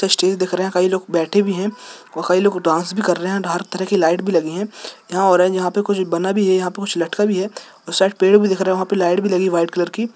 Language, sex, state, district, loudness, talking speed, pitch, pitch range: Hindi, male, Jharkhand, Jamtara, -18 LUFS, 305 wpm, 185 Hz, 180-200 Hz